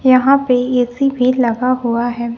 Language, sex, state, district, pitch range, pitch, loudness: Hindi, female, Bihar, West Champaran, 240-260 Hz, 250 Hz, -15 LUFS